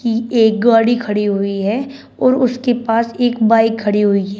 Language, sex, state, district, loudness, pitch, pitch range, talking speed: Hindi, female, Uttar Pradesh, Shamli, -15 LUFS, 225 Hz, 210-240 Hz, 175 wpm